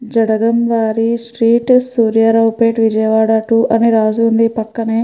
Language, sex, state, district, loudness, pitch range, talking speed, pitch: Telugu, female, Andhra Pradesh, Krishna, -13 LUFS, 225-230 Hz, 105 wpm, 230 Hz